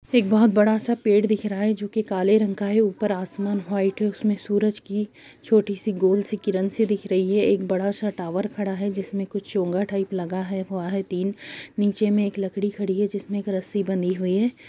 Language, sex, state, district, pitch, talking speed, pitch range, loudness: Hindi, female, Uttar Pradesh, Jyotiba Phule Nagar, 200 Hz, 245 wpm, 195-210 Hz, -23 LUFS